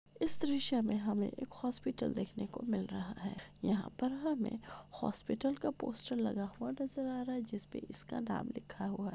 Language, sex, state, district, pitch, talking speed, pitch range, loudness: Hindi, female, Rajasthan, Churu, 235 Hz, 130 wpm, 205-260 Hz, -38 LUFS